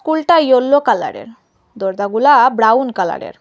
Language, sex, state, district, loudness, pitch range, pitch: Bengali, female, Assam, Hailakandi, -13 LUFS, 220-285 Hz, 250 Hz